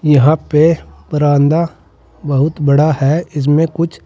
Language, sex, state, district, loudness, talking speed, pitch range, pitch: Hindi, male, Uttar Pradesh, Saharanpur, -13 LUFS, 120 wpm, 145-160 Hz, 150 Hz